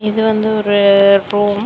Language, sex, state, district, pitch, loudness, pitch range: Tamil, female, Tamil Nadu, Kanyakumari, 205 Hz, -12 LUFS, 200-215 Hz